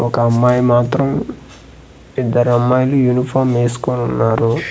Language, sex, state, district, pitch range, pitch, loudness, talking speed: Telugu, male, Andhra Pradesh, Manyam, 120-130 Hz, 120 Hz, -15 LUFS, 75 wpm